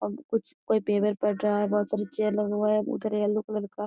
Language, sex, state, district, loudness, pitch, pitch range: Magahi, female, Bihar, Gaya, -27 LUFS, 210 Hz, 205-215 Hz